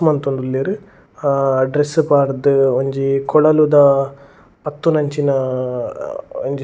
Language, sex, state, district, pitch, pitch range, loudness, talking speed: Tulu, male, Karnataka, Dakshina Kannada, 140 Hz, 135-150 Hz, -16 LUFS, 90 wpm